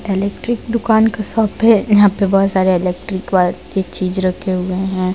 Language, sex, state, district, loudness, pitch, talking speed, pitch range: Hindi, female, Jharkhand, Deoghar, -16 LUFS, 195 Hz, 175 wpm, 185-215 Hz